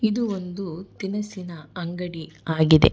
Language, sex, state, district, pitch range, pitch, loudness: Kannada, female, Karnataka, Bangalore, 160-195 Hz, 180 Hz, -26 LUFS